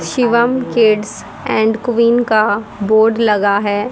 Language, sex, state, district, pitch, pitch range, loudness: Hindi, female, Haryana, Rohtak, 220 Hz, 210-235 Hz, -14 LUFS